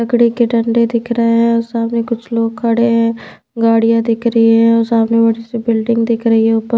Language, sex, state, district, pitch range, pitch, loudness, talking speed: Hindi, female, Bihar, Patna, 230-235 Hz, 230 Hz, -13 LUFS, 220 wpm